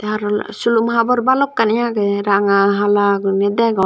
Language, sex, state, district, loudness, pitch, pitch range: Chakma, female, Tripura, Dhalai, -16 LUFS, 210 Hz, 200-230 Hz